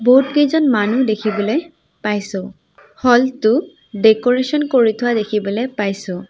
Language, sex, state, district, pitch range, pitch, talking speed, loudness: Assamese, female, Assam, Sonitpur, 210-260 Hz, 225 Hz, 115 wpm, -16 LUFS